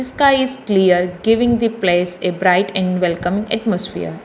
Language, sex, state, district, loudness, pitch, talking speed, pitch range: English, female, Telangana, Hyderabad, -16 LUFS, 190 Hz, 170 wpm, 180-230 Hz